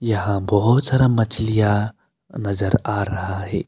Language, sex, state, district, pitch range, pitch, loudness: Hindi, male, Arunachal Pradesh, Longding, 100-120 Hz, 105 Hz, -20 LUFS